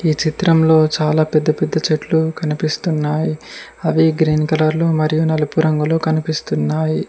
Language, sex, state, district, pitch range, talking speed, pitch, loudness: Telugu, male, Telangana, Mahabubabad, 155-160 Hz, 125 wpm, 155 Hz, -17 LUFS